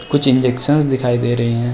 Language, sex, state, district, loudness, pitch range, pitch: Hindi, male, Uttar Pradesh, Jalaun, -15 LUFS, 120-135 Hz, 125 Hz